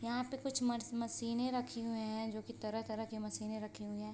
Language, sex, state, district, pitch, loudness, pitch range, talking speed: Hindi, female, Bihar, Sitamarhi, 225 Hz, -40 LUFS, 215-240 Hz, 230 wpm